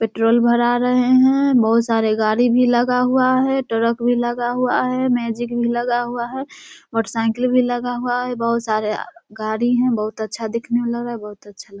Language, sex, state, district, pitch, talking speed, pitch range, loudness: Hindi, female, Bihar, Samastipur, 240 Hz, 215 wpm, 225-250 Hz, -18 LUFS